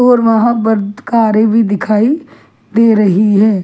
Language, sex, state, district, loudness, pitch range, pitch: Hindi, female, Delhi, New Delhi, -11 LUFS, 210-230 Hz, 220 Hz